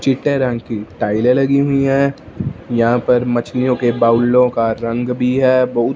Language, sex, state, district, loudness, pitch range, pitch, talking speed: Hindi, male, Punjab, Fazilka, -16 LUFS, 120-130 Hz, 125 Hz, 170 wpm